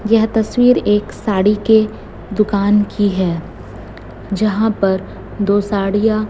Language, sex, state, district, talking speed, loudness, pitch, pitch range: Hindi, female, Chhattisgarh, Raipur, 115 wpm, -16 LUFS, 205 Hz, 195-215 Hz